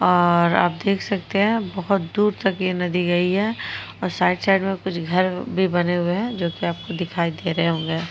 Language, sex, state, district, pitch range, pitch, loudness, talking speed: Hindi, female, Uttar Pradesh, Jyotiba Phule Nagar, 175-195 Hz, 180 Hz, -21 LUFS, 205 wpm